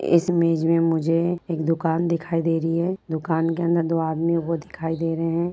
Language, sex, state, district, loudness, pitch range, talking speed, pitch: Hindi, female, Bihar, Sitamarhi, -23 LUFS, 165-170 Hz, 215 wpm, 165 Hz